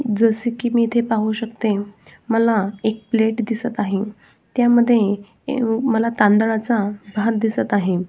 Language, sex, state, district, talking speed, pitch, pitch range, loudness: Marathi, female, Maharashtra, Sindhudurg, 125 wpm, 225 Hz, 210-230 Hz, -19 LUFS